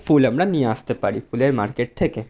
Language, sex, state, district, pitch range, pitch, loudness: Bengali, male, West Bengal, Jhargram, 115-150 Hz, 130 Hz, -21 LUFS